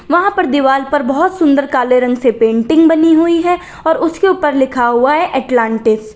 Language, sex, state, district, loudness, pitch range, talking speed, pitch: Hindi, female, Uttar Pradesh, Lalitpur, -12 LUFS, 250-330 Hz, 205 wpm, 285 Hz